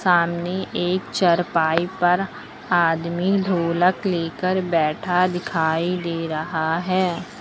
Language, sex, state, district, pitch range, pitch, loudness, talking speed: Hindi, female, Uttar Pradesh, Lucknow, 165-185 Hz, 175 Hz, -21 LUFS, 95 wpm